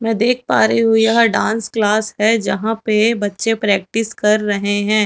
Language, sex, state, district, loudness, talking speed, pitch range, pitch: Hindi, female, Chhattisgarh, Raipur, -16 LUFS, 190 wpm, 210-225 Hz, 220 Hz